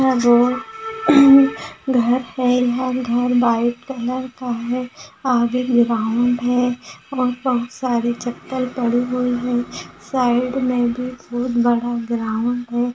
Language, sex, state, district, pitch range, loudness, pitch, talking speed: Hindi, female, Rajasthan, Nagaur, 240-255 Hz, -19 LUFS, 245 Hz, 125 wpm